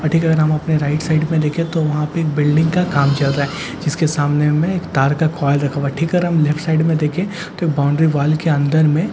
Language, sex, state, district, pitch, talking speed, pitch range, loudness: Hindi, male, Bihar, Katihar, 155 Hz, 265 wpm, 145-165 Hz, -17 LUFS